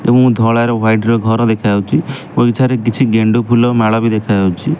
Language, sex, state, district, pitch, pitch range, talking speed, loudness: Odia, male, Odisha, Malkangiri, 115 Hz, 110-120 Hz, 140 wpm, -13 LUFS